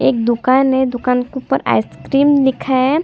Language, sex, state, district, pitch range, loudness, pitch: Hindi, female, Chhattisgarh, Kabirdham, 250-270 Hz, -15 LUFS, 265 Hz